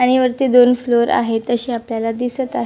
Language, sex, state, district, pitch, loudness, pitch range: Marathi, male, Maharashtra, Chandrapur, 245 Hz, -16 LUFS, 235-250 Hz